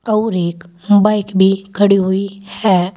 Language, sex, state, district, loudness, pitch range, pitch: Hindi, female, Uttar Pradesh, Saharanpur, -14 LUFS, 185-205 Hz, 195 Hz